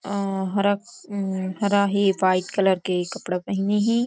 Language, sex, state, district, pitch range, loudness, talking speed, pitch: Hindi, female, Chhattisgarh, Rajnandgaon, 190-205 Hz, -23 LUFS, 145 wpm, 200 Hz